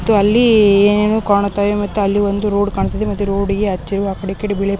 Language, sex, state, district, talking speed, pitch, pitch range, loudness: Kannada, female, Karnataka, Dharwad, 150 wpm, 205 Hz, 200-210 Hz, -15 LUFS